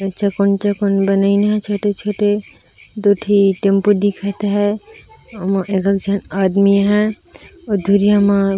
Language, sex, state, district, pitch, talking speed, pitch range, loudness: Chhattisgarhi, female, Chhattisgarh, Raigarh, 200 Hz, 125 wpm, 195-205 Hz, -15 LUFS